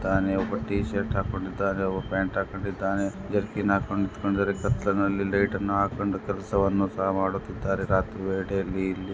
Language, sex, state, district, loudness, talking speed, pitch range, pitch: Kannada, male, Karnataka, Bellary, -27 LUFS, 145 wpm, 95-100 Hz, 100 Hz